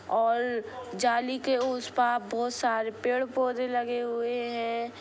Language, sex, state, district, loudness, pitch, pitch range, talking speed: Hindi, female, Bihar, Sitamarhi, -29 LUFS, 240 Hz, 235-250 Hz, 145 wpm